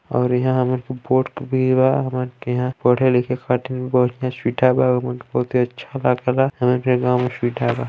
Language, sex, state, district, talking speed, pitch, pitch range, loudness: Chhattisgarhi, male, Chhattisgarh, Balrampur, 230 wpm, 125 Hz, 125-130 Hz, -20 LUFS